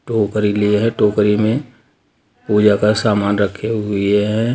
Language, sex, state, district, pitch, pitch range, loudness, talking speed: Hindi, male, Bihar, Darbhanga, 105 Hz, 105-110 Hz, -16 LUFS, 145 wpm